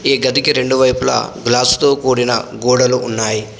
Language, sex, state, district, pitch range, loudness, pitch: Telugu, male, Telangana, Adilabad, 120-130 Hz, -14 LUFS, 125 Hz